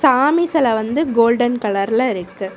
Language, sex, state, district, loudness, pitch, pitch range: Tamil, female, Tamil Nadu, Namakkal, -17 LUFS, 235 Hz, 210-275 Hz